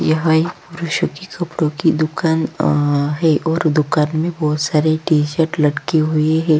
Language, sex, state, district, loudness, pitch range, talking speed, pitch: Hindi, female, Chhattisgarh, Sukma, -17 LUFS, 150-165 Hz, 165 wpm, 155 Hz